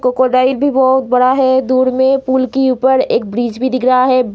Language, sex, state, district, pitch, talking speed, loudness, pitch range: Hindi, female, Bihar, Muzaffarpur, 260 Hz, 220 wpm, -13 LUFS, 255-265 Hz